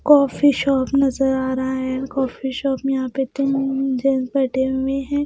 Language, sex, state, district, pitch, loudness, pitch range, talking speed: Hindi, female, Bihar, Patna, 270 Hz, -20 LUFS, 260-275 Hz, 185 wpm